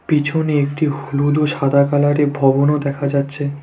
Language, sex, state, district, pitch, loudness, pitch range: Bengali, male, West Bengal, Cooch Behar, 145 Hz, -17 LUFS, 140-150 Hz